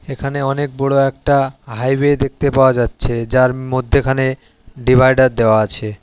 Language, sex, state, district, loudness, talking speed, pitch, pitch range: Bengali, male, West Bengal, Alipurduar, -15 LUFS, 130 wpm, 130 Hz, 120-135 Hz